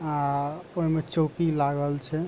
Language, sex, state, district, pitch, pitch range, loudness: Maithili, male, Bihar, Supaul, 155 Hz, 145-160 Hz, -27 LUFS